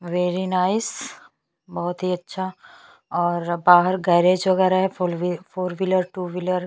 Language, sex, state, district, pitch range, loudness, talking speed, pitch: Hindi, female, Chhattisgarh, Bastar, 175-185 Hz, -21 LUFS, 135 wpm, 180 Hz